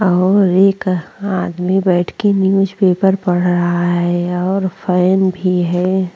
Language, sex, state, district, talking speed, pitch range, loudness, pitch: Hindi, female, Uttar Pradesh, Jyotiba Phule Nagar, 125 wpm, 180-190 Hz, -15 LUFS, 185 Hz